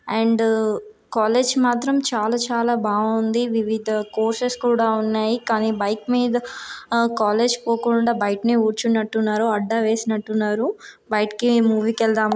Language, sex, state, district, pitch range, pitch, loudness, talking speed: Telugu, female, Telangana, Karimnagar, 220-235 Hz, 225 Hz, -20 LUFS, 110 wpm